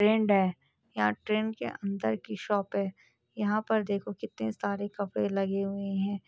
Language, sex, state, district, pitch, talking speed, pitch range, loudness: Hindi, female, Chhattisgarh, Bastar, 200 Hz, 160 wpm, 195-205 Hz, -31 LUFS